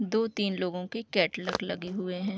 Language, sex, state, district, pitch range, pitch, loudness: Hindi, female, Bihar, East Champaran, 180-215 Hz, 195 Hz, -30 LUFS